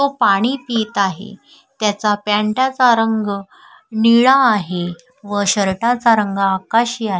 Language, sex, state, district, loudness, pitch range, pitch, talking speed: Marathi, female, Maharashtra, Sindhudurg, -16 LUFS, 200-240 Hz, 215 Hz, 115 wpm